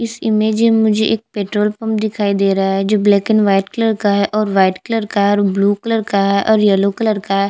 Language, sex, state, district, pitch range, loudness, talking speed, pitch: Hindi, female, Chhattisgarh, Jashpur, 200-220 Hz, -15 LUFS, 265 wpm, 210 Hz